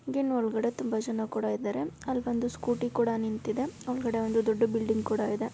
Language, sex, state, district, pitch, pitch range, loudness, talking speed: Kannada, female, Karnataka, Dharwad, 230 Hz, 220-240 Hz, -30 LUFS, 185 wpm